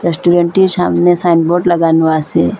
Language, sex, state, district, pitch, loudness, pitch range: Bengali, female, Assam, Hailakandi, 175 Hz, -12 LUFS, 165-175 Hz